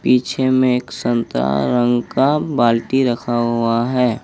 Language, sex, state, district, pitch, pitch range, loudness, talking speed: Hindi, male, Jharkhand, Ranchi, 120 Hz, 115-125 Hz, -17 LUFS, 140 wpm